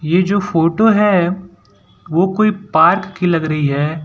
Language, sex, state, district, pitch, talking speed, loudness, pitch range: Hindi, male, Gujarat, Valsad, 175 Hz, 160 wpm, -15 LUFS, 155-195 Hz